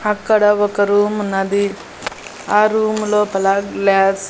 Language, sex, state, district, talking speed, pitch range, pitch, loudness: Telugu, female, Andhra Pradesh, Annamaya, 125 wpm, 195-210 Hz, 205 Hz, -16 LUFS